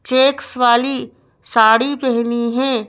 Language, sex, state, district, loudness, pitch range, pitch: Hindi, female, Madhya Pradesh, Bhopal, -15 LUFS, 235-265 Hz, 250 Hz